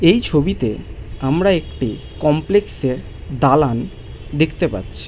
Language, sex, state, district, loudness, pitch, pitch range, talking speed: Bengali, male, West Bengal, Malda, -18 LUFS, 150 Hz, 125-170 Hz, 105 wpm